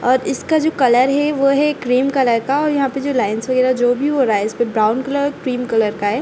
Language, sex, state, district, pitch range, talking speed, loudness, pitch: Hindi, female, Uttar Pradesh, Ghazipur, 240-280 Hz, 270 wpm, -17 LUFS, 255 Hz